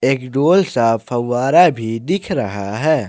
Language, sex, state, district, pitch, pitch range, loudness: Hindi, male, Jharkhand, Ranchi, 130 Hz, 115-160 Hz, -16 LUFS